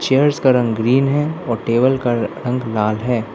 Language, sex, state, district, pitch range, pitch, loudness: Hindi, male, Arunachal Pradesh, Lower Dibang Valley, 115-135 Hz, 125 Hz, -17 LUFS